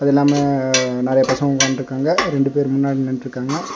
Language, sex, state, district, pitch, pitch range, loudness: Tamil, male, Tamil Nadu, Nilgiris, 135 Hz, 130-140 Hz, -17 LUFS